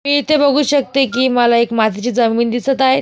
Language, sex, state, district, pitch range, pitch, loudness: Marathi, female, Maharashtra, Solapur, 235-280 Hz, 260 Hz, -14 LUFS